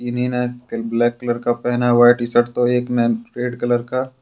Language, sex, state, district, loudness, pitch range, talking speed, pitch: Hindi, male, Jharkhand, Deoghar, -18 LUFS, 120-125 Hz, 230 wpm, 120 Hz